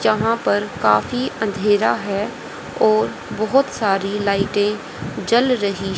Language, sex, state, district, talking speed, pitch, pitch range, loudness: Hindi, female, Haryana, Rohtak, 110 wpm, 205 Hz, 195-225 Hz, -19 LUFS